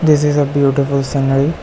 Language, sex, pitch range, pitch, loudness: English, male, 140-150 Hz, 140 Hz, -15 LUFS